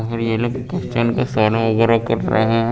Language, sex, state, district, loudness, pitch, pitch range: Hindi, male, Chandigarh, Chandigarh, -18 LUFS, 115 Hz, 115-120 Hz